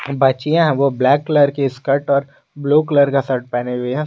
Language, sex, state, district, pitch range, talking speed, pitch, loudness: Hindi, male, Jharkhand, Garhwa, 130-145 Hz, 220 wpm, 140 Hz, -16 LUFS